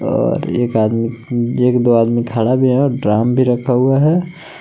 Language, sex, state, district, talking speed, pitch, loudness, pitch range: Hindi, male, Jharkhand, Palamu, 195 wpm, 125 Hz, -15 LUFS, 115-130 Hz